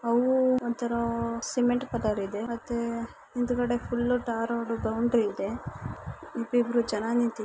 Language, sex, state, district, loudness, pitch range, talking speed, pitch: Kannada, female, Karnataka, Bijapur, -29 LUFS, 230-245 Hz, 90 wpm, 235 Hz